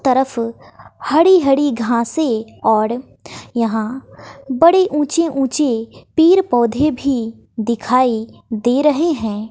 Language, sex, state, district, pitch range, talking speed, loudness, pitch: Hindi, female, Bihar, West Champaran, 230-300 Hz, 100 wpm, -16 LUFS, 255 Hz